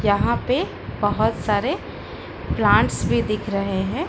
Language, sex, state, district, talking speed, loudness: Hindi, female, Uttar Pradesh, Lucknow, 130 wpm, -21 LUFS